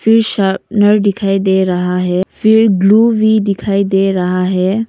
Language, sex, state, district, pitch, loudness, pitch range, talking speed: Hindi, female, Arunachal Pradesh, Papum Pare, 195 Hz, -12 LUFS, 185-215 Hz, 135 wpm